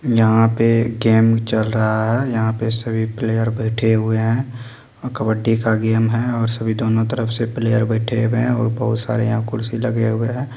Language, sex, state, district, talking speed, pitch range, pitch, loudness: Maithili, male, Bihar, Supaul, 195 wpm, 110-115 Hz, 115 Hz, -18 LUFS